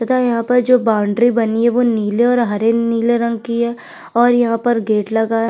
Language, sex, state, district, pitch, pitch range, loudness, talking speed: Hindi, female, Uttarakhand, Tehri Garhwal, 235 Hz, 225-240 Hz, -15 LUFS, 230 wpm